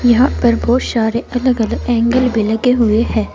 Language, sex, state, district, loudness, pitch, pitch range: Hindi, female, Uttar Pradesh, Saharanpur, -14 LUFS, 235 Hz, 225-250 Hz